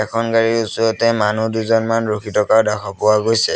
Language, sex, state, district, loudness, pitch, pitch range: Assamese, male, Assam, Sonitpur, -17 LUFS, 110 Hz, 105-115 Hz